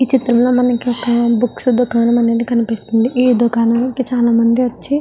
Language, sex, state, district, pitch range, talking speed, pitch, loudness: Telugu, female, Andhra Pradesh, Visakhapatnam, 235-250 Hz, 165 wpm, 240 Hz, -14 LUFS